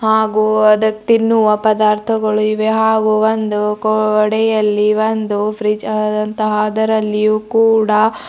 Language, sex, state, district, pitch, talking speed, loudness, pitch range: Kannada, female, Karnataka, Bidar, 215 Hz, 100 wpm, -14 LUFS, 215-220 Hz